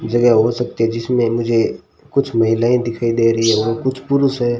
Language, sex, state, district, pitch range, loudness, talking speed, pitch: Hindi, male, Rajasthan, Bikaner, 115-125 Hz, -16 LUFS, 210 wpm, 115 Hz